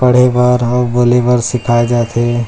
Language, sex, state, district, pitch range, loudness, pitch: Chhattisgarhi, male, Chhattisgarh, Rajnandgaon, 120-125 Hz, -12 LUFS, 125 Hz